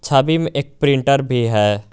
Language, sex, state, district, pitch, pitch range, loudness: Hindi, male, Jharkhand, Garhwa, 135 Hz, 115-140 Hz, -17 LUFS